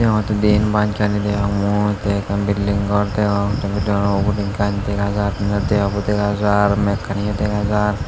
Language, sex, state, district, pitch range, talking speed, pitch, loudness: Chakma, male, Tripura, Unakoti, 100-105 Hz, 195 wpm, 100 Hz, -18 LUFS